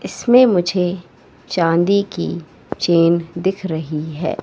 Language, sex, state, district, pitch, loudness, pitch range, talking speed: Hindi, female, Madhya Pradesh, Katni, 175 Hz, -17 LUFS, 165-190 Hz, 110 wpm